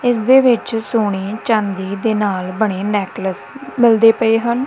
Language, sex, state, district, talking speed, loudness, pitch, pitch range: Punjabi, female, Punjab, Kapurthala, 140 wpm, -16 LUFS, 220 Hz, 200-230 Hz